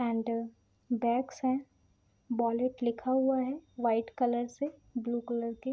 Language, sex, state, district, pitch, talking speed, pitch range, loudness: Hindi, female, Bihar, Sitamarhi, 240 Hz, 145 wpm, 235-260 Hz, -32 LUFS